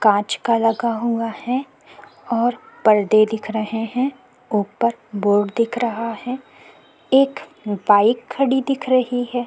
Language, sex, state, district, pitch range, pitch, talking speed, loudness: Hindi, female, Uttarakhand, Tehri Garhwal, 220-250 Hz, 235 Hz, 135 wpm, -20 LUFS